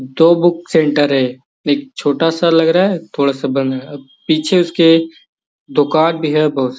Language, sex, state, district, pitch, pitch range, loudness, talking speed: Magahi, male, Bihar, Gaya, 155 Hz, 140-165 Hz, -14 LUFS, 205 wpm